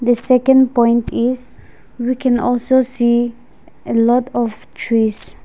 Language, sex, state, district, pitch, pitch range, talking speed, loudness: English, female, Nagaland, Dimapur, 240 Hz, 235-250 Hz, 120 wpm, -16 LUFS